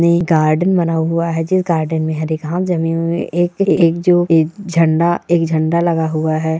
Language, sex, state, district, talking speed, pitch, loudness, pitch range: Hindi, female, Chhattisgarh, Raigarh, 180 wpm, 165 Hz, -15 LUFS, 160-175 Hz